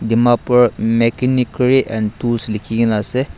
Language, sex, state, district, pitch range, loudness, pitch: Nagamese, male, Nagaland, Dimapur, 110-125 Hz, -16 LUFS, 115 Hz